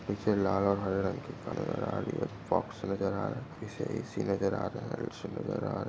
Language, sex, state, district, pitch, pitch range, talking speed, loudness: Hindi, male, Maharashtra, Aurangabad, 105 Hz, 100-130 Hz, 275 wpm, -33 LUFS